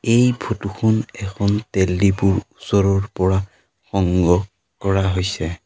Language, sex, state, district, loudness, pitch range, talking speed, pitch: Assamese, male, Assam, Sonitpur, -19 LUFS, 95-105 Hz, 115 wpm, 100 Hz